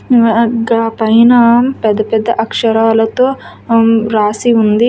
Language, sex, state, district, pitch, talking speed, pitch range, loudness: Telugu, female, Telangana, Hyderabad, 230 Hz, 85 wpm, 225-235 Hz, -11 LUFS